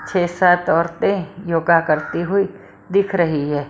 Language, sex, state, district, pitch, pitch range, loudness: Hindi, female, Maharashtra, Mumbai Suburban, 175 Hz, 165-190 Hz, -18 LUFS